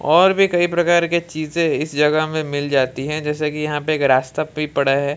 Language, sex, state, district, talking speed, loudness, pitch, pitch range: Hindi, male, Odisha, Malkangiri, 245 wpm, -18 LUFS, 150 Hz, 145-170 Hz